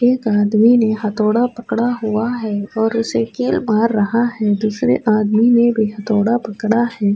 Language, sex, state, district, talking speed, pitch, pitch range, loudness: Urdu, female, Uttar Pradesh, Budaun, 170 wpm, 220 Hz, 215-235 Hz, -16 LUFS